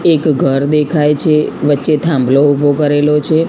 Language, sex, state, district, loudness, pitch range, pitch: Gujarati, female, Gujarat, Gandhinagar, -12 LUFS, 145-155 Hz, 150 Hz